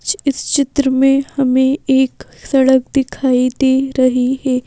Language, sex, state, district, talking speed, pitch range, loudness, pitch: Hindi, female, Madhya Pradesh, Bhopal, 130 wpm, 255-270 Hz, -15 LUFS, 265 Hz